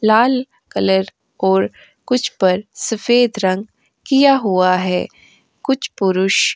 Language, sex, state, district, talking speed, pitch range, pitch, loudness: Hindi, female, Uttar Pradesh, Jyotiba Phule Nagar, 120 wpm, 190-250 Hz, 210 Hz, -17 LUFS